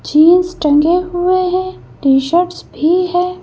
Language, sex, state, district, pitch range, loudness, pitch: Hindi, female, Madhya Pradesh, Bhopal, 310-360 Hz, -13 LUFS, 355 Hz